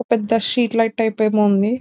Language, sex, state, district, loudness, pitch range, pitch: Telugu, female, Telangana, Nalgonda, -18 LUFS, 215-230 Hz, 225 Hz